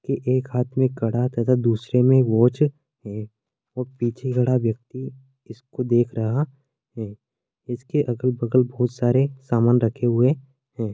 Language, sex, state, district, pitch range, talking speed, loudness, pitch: Hindi, male, Chhattisgarh, Korba, 120-130 Hz, 135 wpm, -22 LUFS, 125 Hz